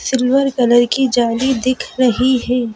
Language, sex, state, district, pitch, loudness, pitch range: Hindi, female, Madhya Pradesh, Bhopal, 250 Hz, -15 LUFS, 240-260 Hz